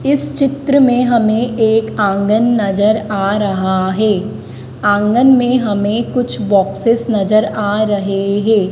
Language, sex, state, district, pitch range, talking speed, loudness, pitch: Hindi, female, Madhya Pradesh, Dhar, 200-235 Hz, 130 wpm, -14 LUFS, 215 Hz